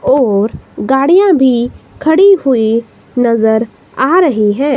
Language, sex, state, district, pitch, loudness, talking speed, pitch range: Hindi, female, Himachal Pradesh, Shimla, 260 Hz, -11 LUFS, 115 wpm, 230-295 Hz